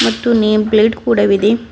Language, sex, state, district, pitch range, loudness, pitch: Kannada, female, Karnataka, Bidar, 205-230 Hz, -13 LUFS, 215 Hz